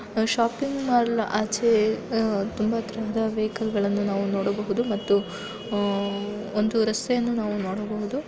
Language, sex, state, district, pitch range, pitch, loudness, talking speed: Kannada, female, Karnataka, Raichur, 205-225 Hz, 215 Hz, -25 LUFS, 110 wpm